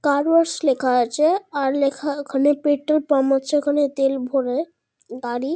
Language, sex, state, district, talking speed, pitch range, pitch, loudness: Bengali, female, West Bengal, Kolkata, 175 wpm, 270-295 Hz, 285 Hz, -20 LUFS